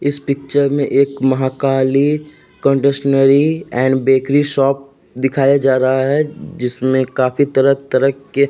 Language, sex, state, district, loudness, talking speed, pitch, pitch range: Hindi, male, Uttar Pradesh, Jalaun, -15 LUFS, 125 wpm, 135 Hz, 130-140 Hz